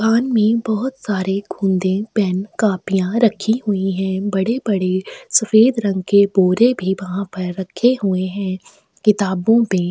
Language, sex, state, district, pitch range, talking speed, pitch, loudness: Hindi, female, Chhattisgarh, Sukma, 190-220 Hz, 150 wpm, 200 Hz, -18 LUFS